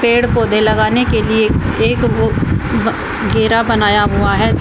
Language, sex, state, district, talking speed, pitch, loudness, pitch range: Hindi, female, Uttar Pradesh, Shamli, 155 wpm, 220 Hz, -14 LUFS, 215-230 Hz